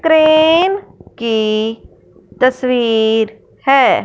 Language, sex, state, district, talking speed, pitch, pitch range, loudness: Hindi, female, Punjab, Fazilka, 60 wpm, 255 Hz, 225-315 Hz, -14 LUFS